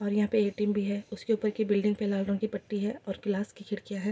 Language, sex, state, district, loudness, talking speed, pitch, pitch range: Hindi, female, Bihar, East Champaran, -30 LUFS, 335 wpm, 210 Hz, 200-210 Hz